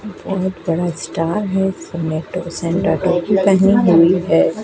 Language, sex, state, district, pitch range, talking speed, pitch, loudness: Hindi, female, Madhya Pradesh, Dhar, 170-190 Hz, 130 wpm, 180 Hz, -16 LUFS